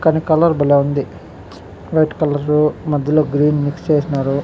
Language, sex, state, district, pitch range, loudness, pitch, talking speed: Telugu, male, Andhra Pradesh, Chittoor, 140-155 Hz, -16 LUFS, 145 Hz, 135 wpm